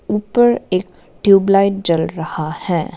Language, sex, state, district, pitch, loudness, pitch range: Hindi, female, Arunachal Pradesh, Lower Dibang Valley, 195 Hz, -16 LUFS, 175-210 Hz